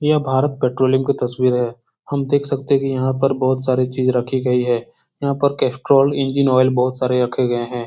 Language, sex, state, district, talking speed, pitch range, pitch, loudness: Hindi, male, Uttar Pradesh, Etah, 220 wpm, 125-140 Hz, 130 Hz, -18 LUFS